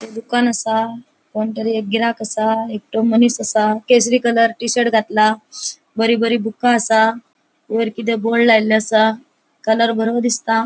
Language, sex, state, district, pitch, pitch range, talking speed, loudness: Konkani, female, Goa, North and South Goa, 225 Hz, 220-235 Hz, 150 wpm, -17 LUFS